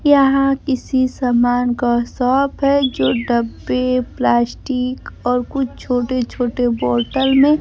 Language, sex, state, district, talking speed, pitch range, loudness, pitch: Hindi, female, Bihar, Kaimur, 120 wpm, 245-270 Hz, -17 LUFS, 250 Hz